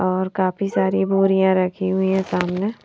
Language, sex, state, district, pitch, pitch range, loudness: Hindi, female, Haryana, Rohtak, 190 Hz, 185-195 Hz, -20 LUFS